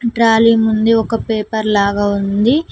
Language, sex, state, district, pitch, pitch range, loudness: Telugu, female, Telangana, Mahabubabad, 220 Hz, 205-230 Hz, -14 LUFS